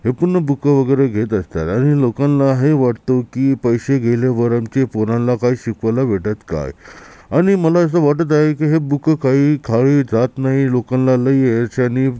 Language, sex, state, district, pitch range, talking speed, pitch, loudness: Marathi, male, Maharashtra, Chandrapur, 120-140 Hz, 160 wpm, 130 Hz, -16 LUFS